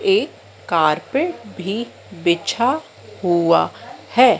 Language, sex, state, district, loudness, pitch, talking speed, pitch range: Hindi, female, Madhya Pradesh, Dhar, -20 LUFS, 195 Hz, 80 wpm, 170-270 Hz